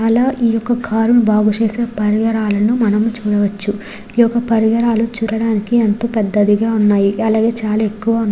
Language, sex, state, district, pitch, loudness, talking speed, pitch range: Telugu, female, Andhra Pradesh, Srikakulam, 225 Hz, -15 LUFS, 145 wpm, 210-230 Hz